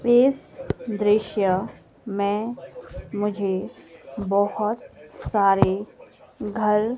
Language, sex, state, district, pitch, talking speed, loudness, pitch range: Hindi, female, Himachal Pradesh, Shimla, 210 Hz, 60 wpm, -24 LUFS, 200-225 Hz